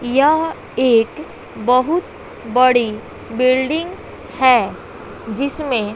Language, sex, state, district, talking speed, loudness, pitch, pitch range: Hindi, female, Bihar, West Champaran, 70 wpm, -17 LUFS, 255 Hz, 230-285 Hz